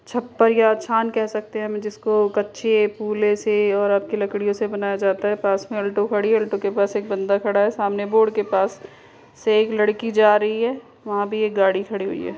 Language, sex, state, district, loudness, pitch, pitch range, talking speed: Hindi, female, Uttar Pradesh, Budaun, -20 LUFS, 210 Hz, 200-215 Hz, 225 wpm